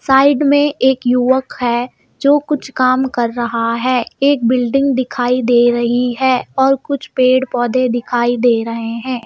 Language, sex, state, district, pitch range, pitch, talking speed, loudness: Hindi, female, Madhya Pradesh, Bhopal, 240-265 Hz, 255 Hz, 155 wpm, -15 LUFS